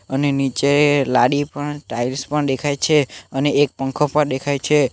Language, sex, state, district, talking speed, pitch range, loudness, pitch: Gujarati, male, Gujarat, Navsari, 170 wpm, 135-145 Hz, -19 LUFS, 145 Hz